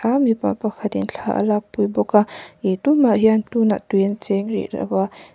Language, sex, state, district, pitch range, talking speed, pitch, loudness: Mizo, female, Mizoram, Aizawl, 205-230 Hz, 245 wpm, 215 Hz, -20 LUFS